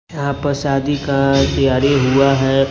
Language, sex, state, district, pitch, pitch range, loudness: Hindi, male, Maharashtra, Washim, 140 Hz, 135-140 Hz, -16 LUFS